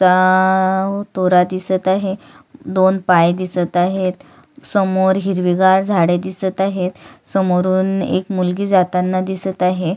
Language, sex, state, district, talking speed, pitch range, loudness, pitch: Marathi, female, Maharashtra, Sindhudurg, 120 wpm, 180-190 Hz, -16 LUFS, 185 Hz